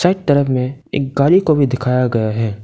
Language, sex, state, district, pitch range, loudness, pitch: Hindi, male, Arunachal Pradesh, Lower Dibang Valley, 125-145 Hz, -16 LUFS, 135 Hz